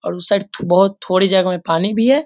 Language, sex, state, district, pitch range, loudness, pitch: Hindi, male, Bihar, Sitamarhi, 180-205 Hz, -16 LUFS, 195 Hz